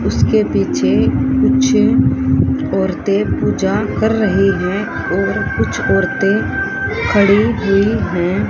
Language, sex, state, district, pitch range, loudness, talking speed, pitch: Hindi, female, Haryana, Rohtak, 130-200 Hz, -15 LUFS, 100 wpm, 175 Hz